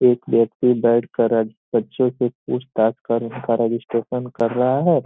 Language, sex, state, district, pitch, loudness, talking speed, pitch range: Hindi, male, Bihar, Gopalganj, 120 Hz, -20 LUFS, 180 wpm, 115-125 Hz